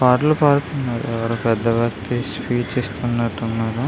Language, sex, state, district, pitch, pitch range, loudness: Telugu, male, Andhra Pradesh, Visakhapatnam, 120 Hz, 115-125 Hz, -20 LUFS